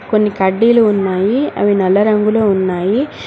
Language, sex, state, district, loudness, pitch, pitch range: Telugu, female, Telangana, Mahabubabad, -13 LUFS, 205 Hz, 190-220 Hz